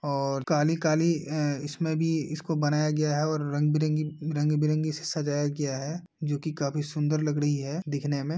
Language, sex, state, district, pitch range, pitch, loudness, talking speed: Hindi, male, Uttar Pradesh, Etah, 145-155 Hz, 150 Hz, -28 LUFS, 185 wpm